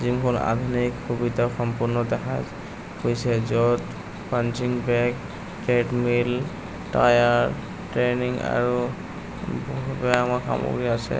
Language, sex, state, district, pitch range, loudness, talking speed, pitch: Assamese, male, Assam, Kamrup Metropolitan, 115-125 Hz, -24 LUFS, 85 wpm, 120 Hz